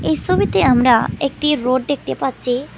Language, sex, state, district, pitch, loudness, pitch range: Bengali, female, Tripura, West Tripura, 255 Hz, -17 LUFS, 225-275 Hz